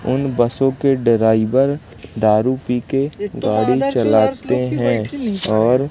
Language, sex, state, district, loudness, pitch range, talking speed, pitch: Hindi, male, Madhya Pradesh, Katni, -17 LUFS, 110-135 Hz, 120 wpm, 125 Hz